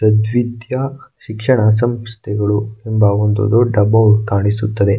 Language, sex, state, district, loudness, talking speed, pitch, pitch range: Kannada, male, Karnataka, Mysore, -15 LUFS, 95 wpm, 110 Hz, 105-120 Hz